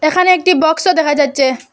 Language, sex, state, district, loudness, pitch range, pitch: Bengali, female, Assam, Hailakandi, -12 LUFS, 290-365 Hz, 315 Hz